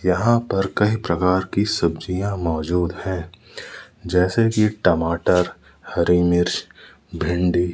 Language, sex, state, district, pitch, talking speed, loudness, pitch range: Hindi, male, Madhya Pradesh, Umaria, 90 Hz, 110 wpm, -20 LUFS, 85-100 Hz